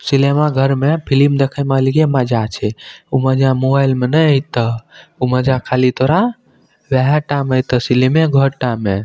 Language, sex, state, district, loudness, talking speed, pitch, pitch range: Maithili, male, Bihar, Madhepura, -15 LUFS, 180 wpm, 135 Hz, 125-140 Hz